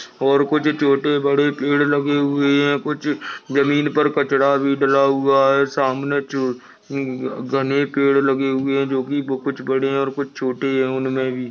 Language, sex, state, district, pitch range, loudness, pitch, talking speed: Hindi, male, Maharashtra, Nagpur, 135-145 Hz, -19 LUFS, 140 Hz, 175 wpm